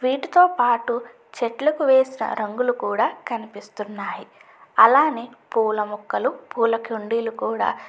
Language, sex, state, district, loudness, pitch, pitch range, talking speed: Telugu, female, Andhra Pradesh, Chittoor, -21 LUFS, 235 Hz, 225-255 Hz, 100 wpm